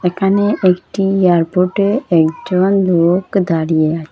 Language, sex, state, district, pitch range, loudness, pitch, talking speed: Bengali, female, Assam, Hailakandi, 170-195 Hz, -14 LUFS, 185 Hz, 100 wpm